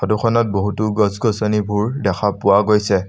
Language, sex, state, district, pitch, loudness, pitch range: Assamese, male, Assam, Sonitpur, 105 Hz, -17 LUFS, 100-110 Hz